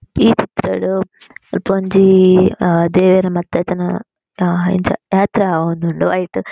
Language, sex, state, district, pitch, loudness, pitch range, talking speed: Tulu, female, Karnataka, Dakshina Kannada, 185 Hz, -15 LUFS, 175-190 Hz, 140 wpm